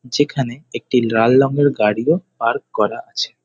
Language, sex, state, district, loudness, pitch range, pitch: Bengali, male, West Bengal, North 24 Parganas, -17 LUFS, 120-145 Hz, 130 Hz